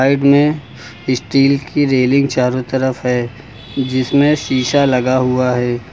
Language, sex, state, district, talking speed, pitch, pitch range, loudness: Hindi, male, Uttar Pradesh, Lucknow, 130 wpm, 130 Hz, 125-140 Hz, -15 LUFS